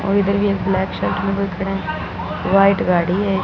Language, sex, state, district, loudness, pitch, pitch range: Hindi, female, Punjab, Fazilka, -18 LUFS, 195 Hz, 180-200 Hz